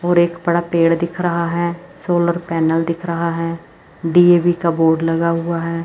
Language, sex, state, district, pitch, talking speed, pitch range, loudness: Hindi, female, Chandigarh, Chandigarh, 170 Hz, 185 wpm, 165-175 Hz, -17 LUFS